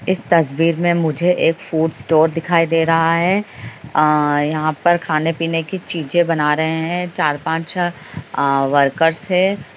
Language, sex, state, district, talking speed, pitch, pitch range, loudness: Hindi, female, Bihar, Sitamarhi, 145 wpm, 165 Hz, 155-175 Hz, -17 LUFS